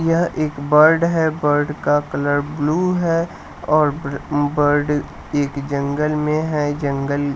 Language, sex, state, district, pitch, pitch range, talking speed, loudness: Hindi, male, Bihar, West Champaran, 150 Hz, 145-155 Hz, 130 wpm, -19 LUFS